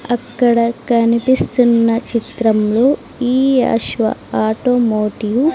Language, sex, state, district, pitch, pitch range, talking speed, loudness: Telugu, female, Andhra Pradesh, Sri Satya Sai, 235 Hz, 230-250 Hz, 75 wpm, -15 LUFS